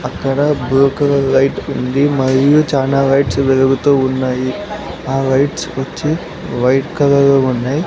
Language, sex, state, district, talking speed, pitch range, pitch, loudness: Telugu, male, Andhra Pradesh, Sri Satya Sai, 130 wpm, 130-145 Hz, 135 Hz, -14 LUFS